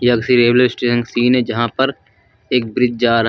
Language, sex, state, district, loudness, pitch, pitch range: Hindi, male, Uttar Pradesh, Lucknow, -15 LUFS, 120 Hz, 115-125 Hz